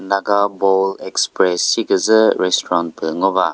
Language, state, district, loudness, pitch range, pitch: Chakhesang, Nagaland, Dimapur, -16 LUFS, 90-100 Hz, 95 Hz